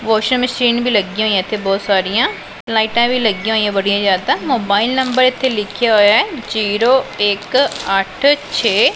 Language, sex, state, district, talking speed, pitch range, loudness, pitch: Punjabi, female, Punjab, Pathankot, 165 wpm, 205-250 Hz, -15 LUFS, 220 Hz